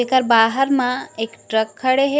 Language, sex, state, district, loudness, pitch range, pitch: Chhattisgarhi, female, Chhattisgarh, Raigarh, -18 LUFS, 225-265 Hz, 250 Hz